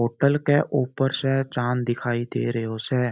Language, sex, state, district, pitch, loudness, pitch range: Marwari, male, Rajasthan, Churu, 125 Hz, -24 LUFS, 120-135 Hz